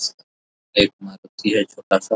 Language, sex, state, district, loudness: Hindi, male, Bihar, Araria, -21 LUFS